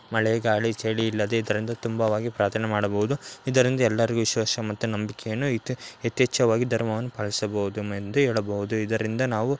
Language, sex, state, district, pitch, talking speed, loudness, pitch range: Kannada, male, Karnataka, Dakshina Kannada, 110 Hz, 130 wpm, -25 LUFS, 105-115 Hz